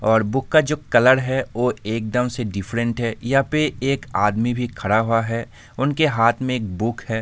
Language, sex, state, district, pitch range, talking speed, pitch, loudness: Hindi, male, Jharkhand, Sahebganj, 115-130 Hz, 210 wpm, 120 Hz, -20 LUFS